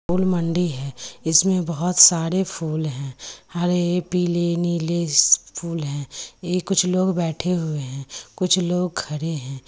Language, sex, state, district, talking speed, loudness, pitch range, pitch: Hindi, female, Bihar, Lakhisarai, 150 wpm, -21 LUFS, 155-180 Hz, 170 Hz